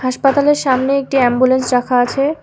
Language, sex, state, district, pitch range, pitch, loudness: Bengali, female, West Bengal, Alipurduar, 255-275 Hz, 260 Hz, -14 LUFS